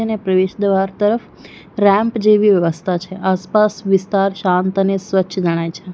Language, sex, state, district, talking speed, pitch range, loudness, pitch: Gujarati, female, Gujarat, Valsad, 150 wpm, 185-205 Hz, -16 LUFS, 195 Hz